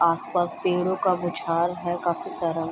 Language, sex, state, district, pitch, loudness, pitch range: Hindi, female, Bihar, Sitamarhi, 175 Hz, -25 LUFS, 170-180 Hz